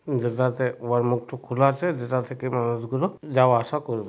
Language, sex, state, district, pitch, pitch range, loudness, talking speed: Bengali, male, West Bengal, Purulia, 130 Hz, 120-135 Hz, -24 LUFS, 160 wpm